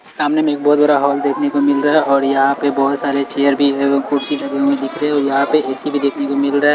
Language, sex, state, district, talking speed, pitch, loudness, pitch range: Hindi, male, Chhattisgarh, Raipur, 320 wpm, 140 Hz, -15 LUFS, 140-145 Hz